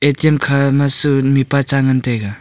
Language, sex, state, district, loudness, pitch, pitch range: Wancho, male, Arunachal Pradesh, Longding, -14 LUFS, 140 Hz, 135-140 Hz